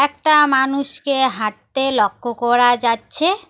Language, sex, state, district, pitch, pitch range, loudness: Bengali, female, West Bengal, Alipurduar, 265 Hz, 240-285 Hz, -16 LUFS